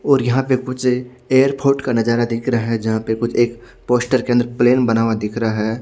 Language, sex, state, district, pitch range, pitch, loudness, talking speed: Hindi, male, Odisha, Khordha, 115-130 Hz, 120 Hz, -18 LUFS, 235 wpm